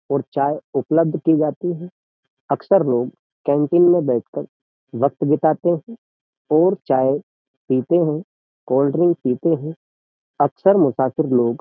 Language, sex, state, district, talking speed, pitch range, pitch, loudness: Hindi, male, Uttar Pradesh, Jyotiba Phule Nagar, 130 wpm, 135-175 Hz, 150 Hz, -19 LUFS